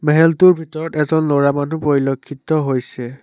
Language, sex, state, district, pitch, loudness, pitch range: Assamese, male, Assam, Sonitpur, 150 Hz, -16 LUFS, 140-160 Hz